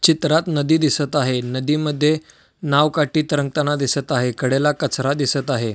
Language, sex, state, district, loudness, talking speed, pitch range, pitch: Marathi, male, Maharashtra, Solapur, -19 LUFS, 145 wpm, 135-155 Hz, 145 Hz